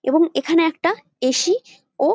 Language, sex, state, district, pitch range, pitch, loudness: Bengali, female, West Bengal, Jalpaiguri, 285-345 Hz, 330 Hz, -19 LUFS